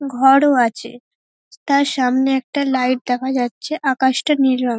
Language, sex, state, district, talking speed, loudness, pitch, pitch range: Bengali, female, West Bengal, North 24 Parganas, 150 wpm, -17 LUFS, 260 Hz, 250-280 Hz